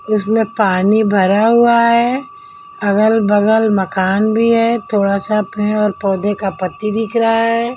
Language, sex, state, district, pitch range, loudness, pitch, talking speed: Hindi, female, Delhi, New Delhi, 205-230 Hz, -14 LUFS, 215 Hz, 145 wpm